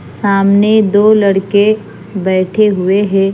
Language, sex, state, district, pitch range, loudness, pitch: Hindi, female, Punjab, Fazilka, 195-210 Hz, -11 LUFS, 200 Hz